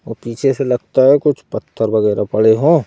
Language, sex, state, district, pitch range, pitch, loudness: Hindi, male, Madhya Pradesh, Bhopal, 110-135 Hz, 120 Hz, -15 LUFS